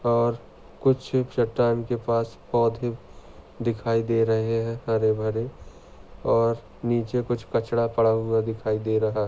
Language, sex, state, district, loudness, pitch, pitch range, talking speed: Hindi, male, Maharashtra, Sindhudurg, -25 LUFS, 115 Hz, 110-120 Hz, 130 wpm